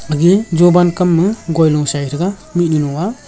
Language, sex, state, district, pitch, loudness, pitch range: Wancho, male, Arunachal Pradesh, Longding, 170 Hz, -14 LUFS, 155-180 Hz